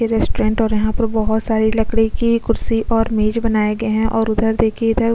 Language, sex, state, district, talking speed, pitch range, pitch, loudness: Hindi, female, Chhattisgarh, Kabirdham, 245 wpm, 220-230 Hz, 225 Hz, -17 LUFS